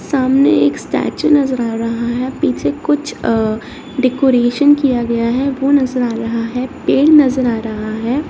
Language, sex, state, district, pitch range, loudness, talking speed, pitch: Hindi, female, Bihar, Darbhanga, 230-275 Hz, -15 LUFS, 175 wpm, 255 Hz